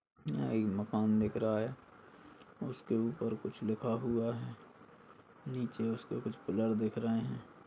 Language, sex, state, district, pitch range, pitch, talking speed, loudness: Hindi, male, Uttar Pradesh, Ghazipur, 110-115 Hz, 110 Hz, 150 wpm, -36 LUFS